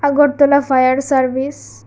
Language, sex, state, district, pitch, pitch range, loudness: Bengali, female, Tripura, West Tripura, 270 Hz, 260-285 Hz, -14 LUFS